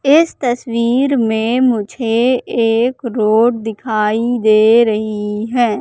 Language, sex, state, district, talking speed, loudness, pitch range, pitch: Hindi, female, Madhya Pradesh, Katni, 105 wpm, -14 LUFS, 220-245 Hz, 230 Hz